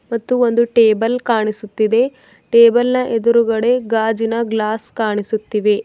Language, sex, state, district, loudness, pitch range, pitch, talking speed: Kannada, female, Karnataka, Bidar, -16 LUFS, 215-235 Hz, 230 Hz, 100 wpm